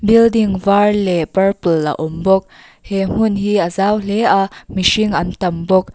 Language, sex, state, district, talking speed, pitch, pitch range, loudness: Mizo, female, Mizoram, Aizawl, 180 wpm, 195 Hz, 180-210 Hz, -15 LUFS